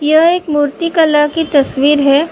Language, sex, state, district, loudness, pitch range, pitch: Hindi, female, Uttar Pradesh, Budaun, -12 LUFS, 290-325 Hz, 300 Hz